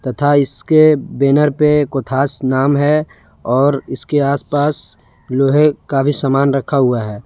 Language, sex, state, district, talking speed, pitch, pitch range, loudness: Hindi, male, Jharkhand, Palamu, 150 wpm, 140 Hz, 135-145 Hz, -14 LUFS